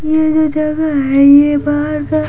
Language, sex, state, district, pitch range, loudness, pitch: Hindi, female, Bihar, Patna, 290-310 Hz, -12 LUFS, 305 Hz